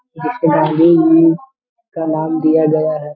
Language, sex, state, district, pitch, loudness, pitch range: Hindi, male, Bihar, Darbhanga, 160 Hz, -13 LUFS, 155-165 Hz